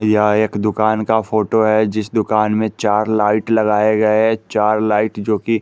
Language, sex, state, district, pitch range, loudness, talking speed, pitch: Hindi, male, Bihar, West Champaran, 105-110 Hz, -16 LUFS, 180 wpm, 110 Hz